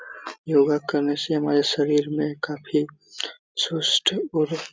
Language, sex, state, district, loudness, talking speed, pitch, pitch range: Hindi, male, Bihar, Supaul, -23 LUFS, 125 wpm, 150 Hz, 145-155 Hz